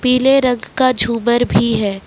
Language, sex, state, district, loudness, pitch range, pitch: Hindi, male, Jharkhand, Ranchi, -14 LUFS, 225-255 Hz, 240 Hz